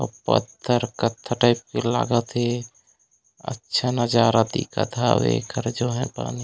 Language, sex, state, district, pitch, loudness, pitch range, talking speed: Chhattisgarhi, male, Chhattisgarh, Raigarh, 120 Hz, -23 LUFS, 110-120 Hz, 140 wpm